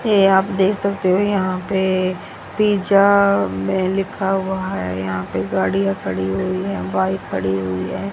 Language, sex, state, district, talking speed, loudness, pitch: Hindi, female, Haryana, Rohtak, 160 wpm, -19 LUFS, 185 Hz